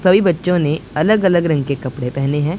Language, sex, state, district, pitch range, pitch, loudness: Hindi, male, Punjab, Pathankot, 140-180 Hz, 155 Hz, -17 LUFS